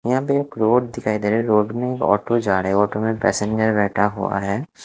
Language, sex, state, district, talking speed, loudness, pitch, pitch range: Hindi, male, Odisha, Khordha, 260 wpm, -20 LUFS, 110 Hz, 105-120 Hz